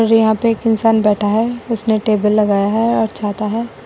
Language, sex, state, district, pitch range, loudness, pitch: Hindi, female, Assam, Sonitpur, 210-225 Hz, -15 LUFS, 220 Hz